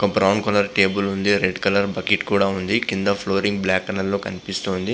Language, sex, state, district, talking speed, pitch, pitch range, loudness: Telugu, male, Andhra Pradesh, Visakhapatnam, 220 wpm, 100 Hz, 95-100 Hz, -20 LUFS